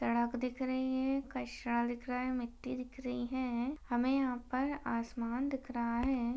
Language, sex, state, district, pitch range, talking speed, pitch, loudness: Hindi, female, Maharashtra, Pune, 240-260 Hz, 180 wpm, 250 Hz, -36 LUFS